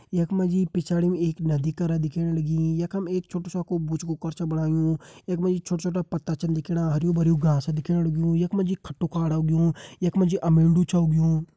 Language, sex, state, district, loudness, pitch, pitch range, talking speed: Hindi, male, Uttarakhand, Uttarkashi, -25 LUFS, 170 Hz, 160-175 Hz, 200 wpm